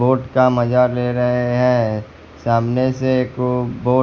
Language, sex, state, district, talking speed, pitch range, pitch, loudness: Hindi, male, Bihar, West Champaran, 150 wpm, 120-125 Hz, 125 Hz, -18 LUFS